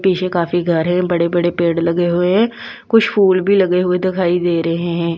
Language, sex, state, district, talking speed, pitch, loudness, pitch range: Hindi, female, Bihar, Patna, 210 wpm, 175 Hz, -15 LUFS, 170-185 Hz